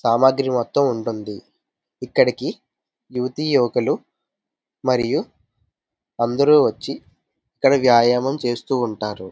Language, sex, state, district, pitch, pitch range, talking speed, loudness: Telugu, male, Andhra Pradesh, Visakhapatnam, 125 Hz, 115-135 Hz, 75 wpm, -20 LUFS